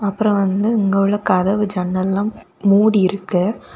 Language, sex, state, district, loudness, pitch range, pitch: Tamil, female, Tamil Nadu, Kanyakumari, -17 LUFS, 190-210 Hz, 200 Hz